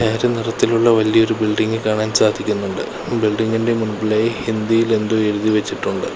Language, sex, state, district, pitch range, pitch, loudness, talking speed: Malayalam, male, Kerala, Kollam, 110-115 Hz, 110 Hz, -18 LUFS, 125 wpm